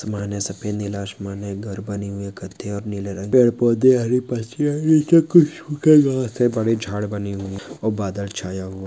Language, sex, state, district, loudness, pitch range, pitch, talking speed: Hindi, male, Maharashtra, Pune, -20 LUFS, 100-125 Hz, 105 Hz, 175 wpm